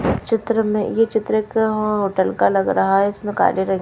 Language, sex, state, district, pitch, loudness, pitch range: Hindi, female, Chhattisgarh, Raipur, 210 Hz, -19 LUFS, 190-220 Hz